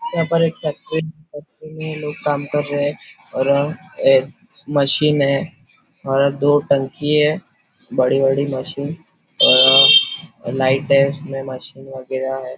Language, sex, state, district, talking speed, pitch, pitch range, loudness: Hindi, male, Maharashtra, Nagpur, 135 wpm, 145 Hz, 135-150 Hz, -16 LUFS